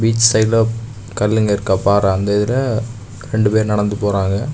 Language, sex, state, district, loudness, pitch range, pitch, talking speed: Tamil, male, Tamil Nadu, Kanyakumari, -16 LUFS, 100-115 Hz, 110 Hz, 145 wpm